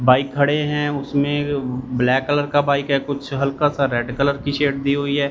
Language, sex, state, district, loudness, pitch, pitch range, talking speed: Hindi, male, Punjab, Fazilka, -20 LUFS, 140 Hz, 135-145 Hz, 215 wpm